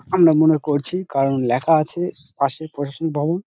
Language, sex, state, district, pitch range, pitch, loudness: Bengali, male, West Bengal, Dakshin Dinajpur, 140-165 Hz, 155 Hz, -20 LUFS